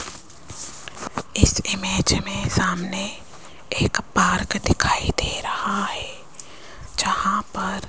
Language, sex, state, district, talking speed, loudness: Hindi, female, Rajasthan, Jaipur, 100 wpm, -22 LUFS